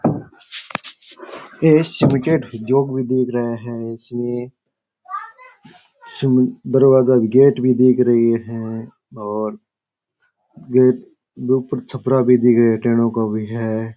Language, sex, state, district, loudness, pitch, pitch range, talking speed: Rajasthani, male, Rajasthan, Churu, -17 LUFS, 125 Hz, 115-130 Hz, 115 wpm